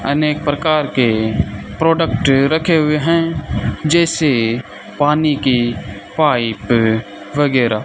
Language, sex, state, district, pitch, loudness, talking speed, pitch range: Hindi, male, Rajasthan, Bikaner, 145 Hz, -16 LUFS, 100 wpm, 115-155 Hz